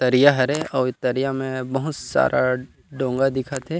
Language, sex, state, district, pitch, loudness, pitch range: Chhattisgarhi, male, Chhattisgarh, Rajnandgaon, 130 Hz, -22 LUFS, 125-135 Hz